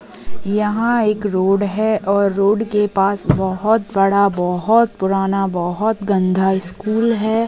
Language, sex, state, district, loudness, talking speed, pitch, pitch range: Hindi, female, Bihar, Bhagalpur, -17 LUFS, 130 wpm, 200 Hz, 195-215 Hz